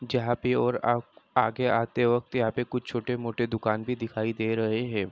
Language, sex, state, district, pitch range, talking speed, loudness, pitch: Hindi, male, Bihar, Madhepura, 115-125 Hz, 200 wpm, -28 LUFS, 120 Hz